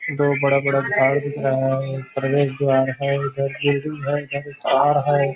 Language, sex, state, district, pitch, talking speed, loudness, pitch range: Hindi, male, Chhattisgarh, Rajnandgaon, 140 Hz, 145 wpm, -20 LUFS, 135-145 Hz